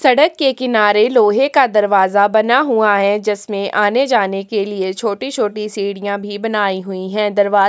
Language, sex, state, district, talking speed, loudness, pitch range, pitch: Hindi, female, Chhattisgarh, Kabirdham, 165 wpm, -15 LUFS, 200-235 Hz, 210 Hz